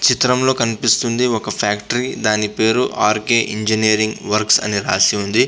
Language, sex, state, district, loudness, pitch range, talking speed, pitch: Telugu, male, Andhra Pradesh, Visakhapatnam, -16 LUFS, 105-120 Hz, 140 wpm, 110 Hz